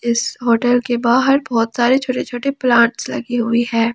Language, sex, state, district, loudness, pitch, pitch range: Hindi, female, Jharkhand, Palamu, -16 LUFS, 240 Hz, 235-250 Hz